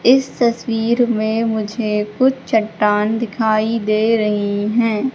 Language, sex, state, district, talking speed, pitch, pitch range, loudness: Hindi, female, Madhya Pradesh, Katni, 115 wpm, 225 Hz, 215-235 Hz, -17 LUFS